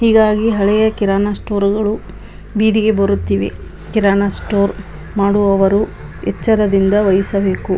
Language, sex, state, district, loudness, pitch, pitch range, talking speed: Kannada, female, Karnataka, Bijapur, -15 LUFS, 200 Hz, 195-215 Hz, 90 wpm